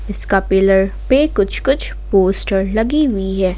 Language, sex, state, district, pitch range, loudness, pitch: Hindi, female, Jharkhand, Ranchi, 190-240 Hz, -15 LUFS, 195 Hz